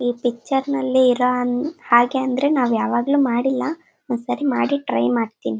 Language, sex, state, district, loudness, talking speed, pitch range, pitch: Kannada, female, Karnataka, Bellary, -20 LUFS, 140 wpm, 240-275 Hz, 255 Hz